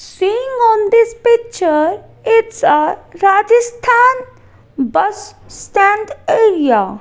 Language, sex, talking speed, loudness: English, female, 85 wpm, -13 LUFS